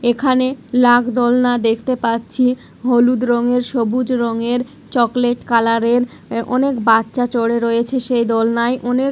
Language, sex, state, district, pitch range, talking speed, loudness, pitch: Bengali, female, West Bengal, Jhargram, 235-250 Hz, 130 wpm, -16 LUFS, 245 Hz